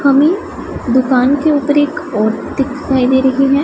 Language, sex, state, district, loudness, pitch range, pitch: Hindi, female, Punjab, Pathankot, -14 LUFS, 260-290 Hz, 275 Hz